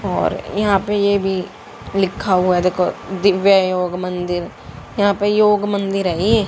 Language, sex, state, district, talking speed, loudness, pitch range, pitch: Hindi, female, Haryana, Rohtak, 165 wpm, -17 LUFS, 180-205 Hz, 195 Hz